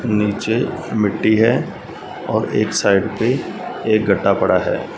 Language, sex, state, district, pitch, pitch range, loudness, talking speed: Hindi, male, Punjab, Fazilka, 105 Hz, 100-110 Hz, -18 LUFS, 130 wpm